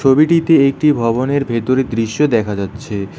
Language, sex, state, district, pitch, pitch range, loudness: Bengali, male, West Bengal, Alipurduar, 130 Hz, 115-140 Hz, -15 LUFS